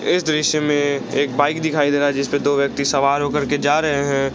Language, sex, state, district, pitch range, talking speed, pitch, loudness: Hindi, male, Jharkhand, Garhwa, 140-150 Hz, 250 wpm, 145 Hz, -18 LUFS